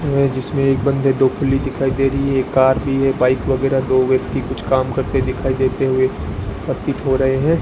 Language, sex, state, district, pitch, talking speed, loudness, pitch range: Hindi, female, Rajasthan, Bikaner, 135 Hz, 215 wpm, -17 LUFS, 130-135 Hz